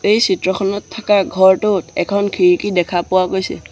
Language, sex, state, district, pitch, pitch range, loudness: Assamese, male, Assam, Sonitpur, 190 Hz, 185-205 Hz, -15 LUFS